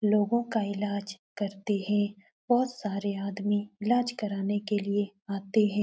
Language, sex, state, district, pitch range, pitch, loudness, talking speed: Hindi, female, Uttar Pradesh, Etah, 200-210 Hz, 205 Hz, -30 LUFS, 145 wpm